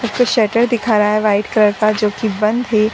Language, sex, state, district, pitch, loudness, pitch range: Hindi, female, Bihar, Sitamarhi, 215 Hz, -15 LUFS, 210-235 Hz